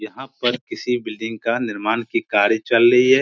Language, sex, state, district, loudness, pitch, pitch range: Hindi, male, Bihar, Supaul, -19 LUFS, 115 Hz, 110-125 Hz